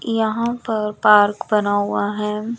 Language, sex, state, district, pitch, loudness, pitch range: Hindi, female, Chandigarh, Chandigarh, 210 Hz, -18 LUFS, 210-225 Hz